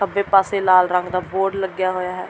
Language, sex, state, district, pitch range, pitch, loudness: Punjabi, female, Delhi, New Delhi, 185-195 Hz, 185 Hz, -19 LUFS